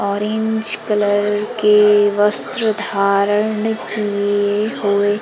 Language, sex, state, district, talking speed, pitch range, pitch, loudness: Hindi, female, Madhya Pradesh, Umaria, 80 wpm, 205-215 Hz, 210 Hz, -16 LUFS